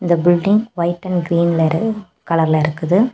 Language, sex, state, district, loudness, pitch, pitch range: Tamil, female, Tamil Nadu, Kanyakumari, -17 LUFS, 175 Hz, 165-185 Hz